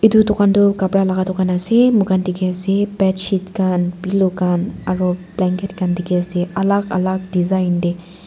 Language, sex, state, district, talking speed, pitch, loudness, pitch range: Nagamese, female, Nagaland, Dimapur, 150 wpm, 185 Hz, -17 LUFS, 180-195 Hz